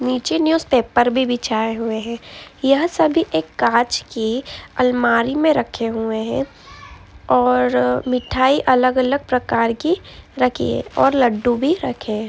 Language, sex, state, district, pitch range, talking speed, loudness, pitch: Hindi, female, Andhra Pradesh, Anantapur, 225-270 Hz, 145 wpm, -18 LUFS, 245 Hz